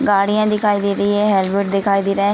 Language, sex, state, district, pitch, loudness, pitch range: Hindi, female, Bihar, Sitamarhi, 200 Hz, -17 LUFS, 200-205 Hz